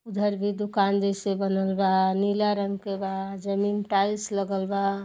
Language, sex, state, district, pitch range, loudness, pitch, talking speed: Bhojpuri, female, Uttar Pradesh, Gorakhpur, 195-205 Hz, -26 LUFS, 200 Hz, 165 wpm